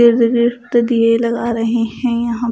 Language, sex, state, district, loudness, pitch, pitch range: Hindi, female, Punjab, Pathankot, -16 LUFS, 235 Hz, 230-240 Hz